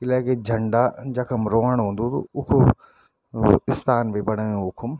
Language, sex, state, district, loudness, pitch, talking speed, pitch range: Garhwali, male, Uttarakhand, Tehri Garhwal, -22 LUFS, 120 Hz, 130 wpm, 110-125 Hz